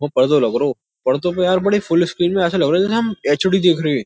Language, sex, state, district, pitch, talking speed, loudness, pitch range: Hindi, male, Uttar Pradesh, Jyotiba Phule Nagar, 175 Hz, 295 wpm, -17 LUFS, 150-190 Hz